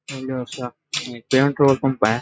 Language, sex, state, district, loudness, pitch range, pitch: Rajasthani, male, Rajasthan, Nagaur, -21 LUFS, 125-140 Hz, 130 Hz